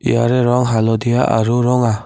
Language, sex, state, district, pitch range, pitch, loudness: Assamese, male, Assam, Kamrup Metropolitan, 115-125 Hz, 120 Hz, -15 LUFS